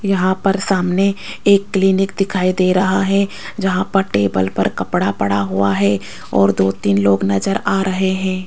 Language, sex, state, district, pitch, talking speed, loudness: Hindi, female, Rajasthan, Jaipur, 185 Hz, 175 wpm, -16 LUFS